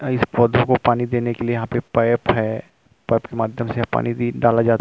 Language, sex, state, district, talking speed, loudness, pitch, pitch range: Hindi, male, Chhattisgarh, Rajnandgaon, 235 wpm, -20 LUFS, 120 Hz, 115-120 Hz